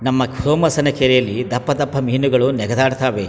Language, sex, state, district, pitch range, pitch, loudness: Kannada, male, Karnataka, Chamarajanagar, 125-140 Hz, 130 Hz, -17 LUFS